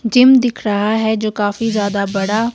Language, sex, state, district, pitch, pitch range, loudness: Hindi, female, Himachal Pradesh, Shimla, 220 Hz, 205-230 Hz, -15 LUFS